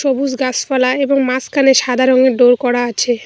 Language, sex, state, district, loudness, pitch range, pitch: Bengali, female, West Bengal, Cooch Behar, -13 LUFS, 245-270 Hz, 255 Hz